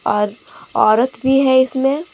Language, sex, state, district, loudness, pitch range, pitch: Hindi, female, Jharkhand, Deoghar, -16 LUFS, 225-270 Hz, 260 Hz